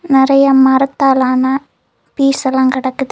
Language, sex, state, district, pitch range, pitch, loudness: Tamil, female, Tamil Nadu, Kanyakumari, 260-275 Hz, 270 Hz, -12 LUFS